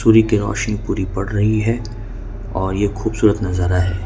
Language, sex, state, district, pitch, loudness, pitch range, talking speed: Hindi, male, Jharkhand, Ranchi, 105 Hz, -18 LUFS, 95-110 Hz, 145 wpm